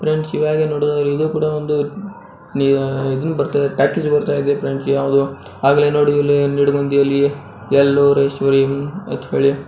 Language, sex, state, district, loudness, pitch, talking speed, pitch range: Kannada, male, Karnataka, Bijapur, -17 LUFS, 140 Hz, 95 wpm, 140-150 Hz